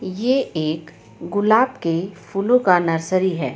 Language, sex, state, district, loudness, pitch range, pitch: Hindi, female, Jharkhand, Ranchi, -19 LUFS, 165-215 Hz, 185 Hz